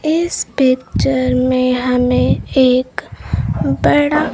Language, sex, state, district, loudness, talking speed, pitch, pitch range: Hindi, female, Bihar, Kaimur, -15 LUFS, 85 wpm, 255 Hz, 235-265 Hz